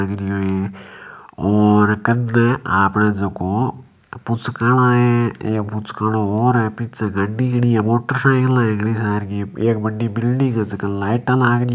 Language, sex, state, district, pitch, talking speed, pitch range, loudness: Marwari, male, Rajasthan, Nagaur, 110 Hz, 165 wpm, 105-120 Hz, -18 LUFS